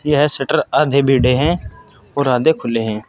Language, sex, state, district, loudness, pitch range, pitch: Hindi, male, Uttar Pradesh, Saharanpur, -16 LUFS, 125-150 Hz, 135 Hz